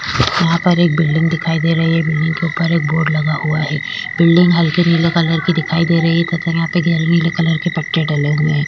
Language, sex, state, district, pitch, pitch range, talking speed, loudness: Hindi, female, Maharashtra, Chandrapur, 165 Hz, 160-170 Hz, 220 wpm, -15 LUFS